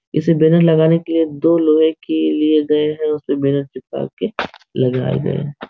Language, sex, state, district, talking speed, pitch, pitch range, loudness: Hindi, male, Bihar, Supaul, 190 wpm, 155 Hz, 140-160 Hz, -16 LUFS